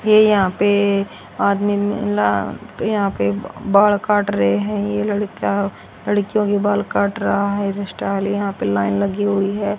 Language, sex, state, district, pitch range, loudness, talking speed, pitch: Hindi, female, Haryana, Rohtak, 195-205 Hz, -18 LUFS, 165 wpm, 200 Hz